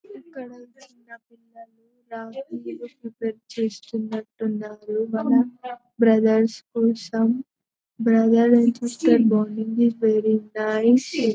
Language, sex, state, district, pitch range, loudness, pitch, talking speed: Telugu, female, Telangana, Karimnagar, 220-240 Hz, -21 LUFS, 230 Hz, 70 wpm